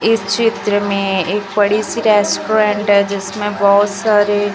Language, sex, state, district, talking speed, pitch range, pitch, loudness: Hindi, male, Chhattisgarh, Raipur, 145 wpm, 200-210 Hz, 205 Hz, -15 LUFS